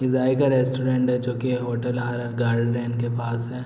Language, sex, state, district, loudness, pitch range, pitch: Hindi, male, Bihar, Araria, -23 LUFS, 120-130 Hz, 125 Hz